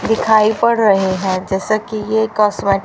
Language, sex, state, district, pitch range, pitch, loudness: Hindi, female, Haryana, Rohtak, 195-220 Hz, 215 Hz, -15 LUFS